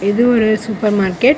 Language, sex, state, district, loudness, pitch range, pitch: Tamil, female, Tamil Nadu, Kanyakumari, -15 LUFS, 205-240 Hz, 215 Hz